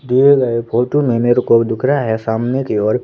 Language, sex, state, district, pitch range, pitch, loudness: Hindi, male, Madhya Pradesh, Bhopal, 115-135 Hz, 120 Hz, -15 LUFS